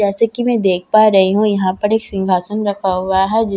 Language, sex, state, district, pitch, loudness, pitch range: Hindi, female, Bihar, Katihar, 205 Hz, -15 LUFS, 190-215 Hz